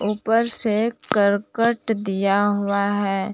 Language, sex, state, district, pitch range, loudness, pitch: Hindi, female, Jharkhand, Palamu, 200-225 Hz, -21 LUFS, 210 Hz